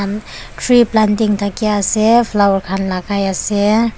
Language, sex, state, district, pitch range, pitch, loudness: Nagamese, female, Nagaland, Dimapur, 200-220 Hz, 205 Hz, -15 LUFS